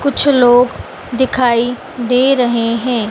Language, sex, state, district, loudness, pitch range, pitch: Hindi, female, Madhya Pradesh, Dhar, -13 LUFS, 240-260 Hz, 245 Hz